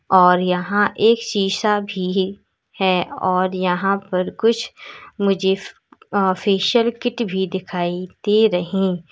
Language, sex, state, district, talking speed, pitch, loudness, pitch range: Hindi, female, Uttar Pradesh, Lalitpur, 110 wpm, 195 Hz, -19 LUFS, 185-205 Hz